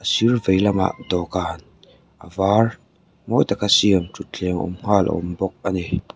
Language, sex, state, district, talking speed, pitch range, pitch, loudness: Mizo, male, Mizoram, Aizawl, 155 wpm, 90-100 Hz, 95 Hz, -20 LUFS